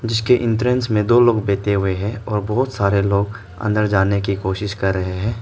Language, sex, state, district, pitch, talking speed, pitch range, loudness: Hindi, male, Arunachal Pradesh, Lower Dibang Valley, 105 Hz, 210 wpm, 100-115 Hz, -18 LUFS